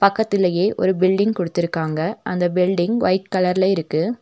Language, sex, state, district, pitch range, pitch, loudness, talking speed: Tamil, female, Tamil Nadu, Nilgiris, 175-195 Hz, 185 Hz, -19 LUFS, 130 wpm